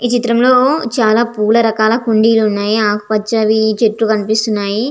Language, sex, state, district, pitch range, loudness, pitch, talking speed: Telugu, female, Andhra Pradesh, Visakhapatnam, 215-235 Hz, -13 LUFS, 220 Hz, 120 wpm